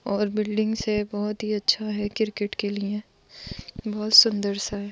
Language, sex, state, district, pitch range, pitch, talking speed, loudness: Hindi, female, Goa, North and South Goa, 205-215 Hz, 210 Hz, 170 wpm, -23 LUFS